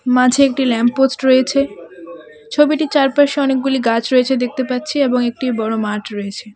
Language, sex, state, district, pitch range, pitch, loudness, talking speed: Bengali, female, West Bengal, Alipurduar, 230-270 Hz, 255 Hz, -16 LUFS, 155 wpm